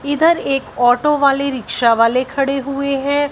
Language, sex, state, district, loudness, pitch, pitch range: Hindi, female, Punjab, Fazilka, -16 LUFS, 275 Hz, 255-280 Hz